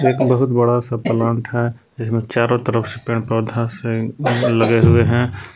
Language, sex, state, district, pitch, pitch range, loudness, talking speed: Hindi, male, Jharkhand, Palamu, 115 Hz, 115-120 Hz, -17 LUFS, 175 wpm